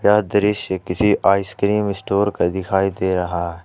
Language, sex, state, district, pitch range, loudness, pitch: Hindi, male, Jharkhand, Ranchi, 95-105 Hz, -19 LUFS, 95 Hz